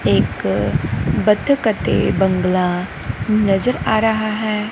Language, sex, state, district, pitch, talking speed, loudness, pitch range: Punjabi, female, Punjab, Kapurthala, 210 Hz, 100 wpm, -18 LUFS, 190-220 Hz